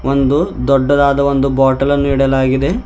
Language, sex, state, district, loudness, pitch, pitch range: Kannada, male, Karnataka, Bidar, -13 LUFS, 135 Hz, 135-140 Hz